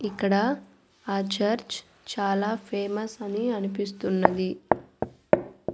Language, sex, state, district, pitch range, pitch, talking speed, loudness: Telugu, female, Andhra Pradesh, Annamaya, 200-215 Hz, 205 Hz, 75 wpm, -27 LUFS